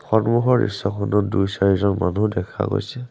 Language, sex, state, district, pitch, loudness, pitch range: Assamese, male, Assam, Sonitpur, 105 Hz, -20 LUFS, 100-115 Hz